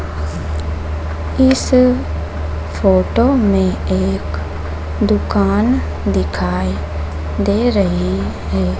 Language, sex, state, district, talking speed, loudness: Hindi, female, Madhya Pradesh, Dhar, 60 wpm, -17 LUFS